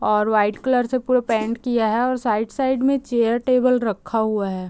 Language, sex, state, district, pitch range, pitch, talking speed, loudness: Hindi, female, Bihar, Gopalganj, 215-255 Hz, 235 Hz, 215 wpm, -20 LUFS